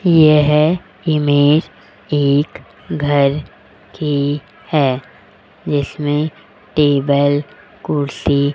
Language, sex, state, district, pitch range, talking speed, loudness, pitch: Hindi, female, Rajasthan, Jaipur, 140-150 Hz, 70 wpm, -16 LUFS, 145 Hz